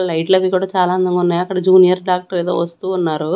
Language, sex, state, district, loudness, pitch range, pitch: Telugu, female, Andhra Pradesh, Annamaya, -15 LUFS, 175-185 Hz, 180 Hz